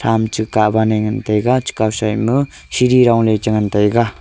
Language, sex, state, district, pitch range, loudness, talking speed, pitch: Wancho, male, Arunachal Pradesh, Longding, 105-120 Hz, -15 LUFS, 215 wpm, 110 Hz